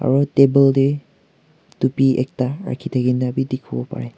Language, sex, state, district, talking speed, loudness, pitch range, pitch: Nagamese, male, Nagaland, Kohima, 130 wpm, -19 LUFS, 125-140 Hz, 135 Hz